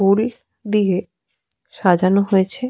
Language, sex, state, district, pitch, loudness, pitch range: Bengali, female, Jharkhand, Sahebganj, 195 Hz, -18 LUFS, 190-215 Hz